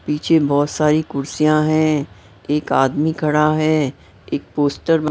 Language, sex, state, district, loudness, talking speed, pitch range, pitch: Hindi, female, Maharashtra, Mumbai Suburban, -18 LUFS, 140 wpm, 145-155 Hz, 150 Hz